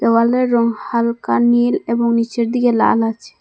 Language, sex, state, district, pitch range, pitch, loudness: Bengali, female, Assam, Hailakandi, 225-235 Hz, 230 Hz, -16 LUFS